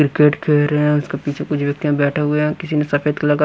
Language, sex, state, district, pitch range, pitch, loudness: Hindi, male, Punjab, Pathankot, 145-150 Hz, 150 Hz, -18 LUFS